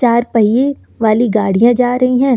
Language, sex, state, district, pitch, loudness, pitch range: Hindi, female, Uttar Pradesh, Lucknow, 240 Hz, -13 LUFS, 220-250 Hz